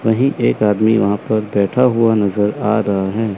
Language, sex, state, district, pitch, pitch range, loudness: Hindi, male, Chandigarh, Chandigarh, 110 Hz, 105-115 Hz, -15 LUFS